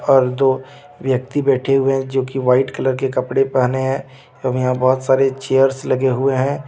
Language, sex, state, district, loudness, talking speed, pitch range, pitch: Hindi, male, Jharkhand, Deoghar, -17 LUFS, 200 wpm, 130-135 Hz, 135 Hz